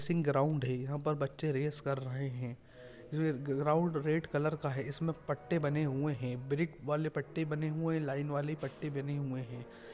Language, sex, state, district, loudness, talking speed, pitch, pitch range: Hindi, male, Chhattisgarh, Bastar, -35 LUFS, 205 wpm, 145 Hz, 135-155 Hz